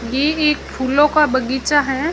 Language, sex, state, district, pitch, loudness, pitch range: Hindi, female, Rajasthan, Jaisalmer, 290 Hz, -16 LUFS, 260-300 Hz